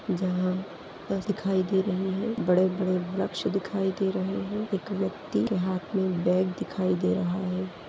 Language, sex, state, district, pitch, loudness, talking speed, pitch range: Hindi, female, Maharashtra, Aurangabad, 190 Hz, -28 LUFS, 175 wpm, 185-195 Hz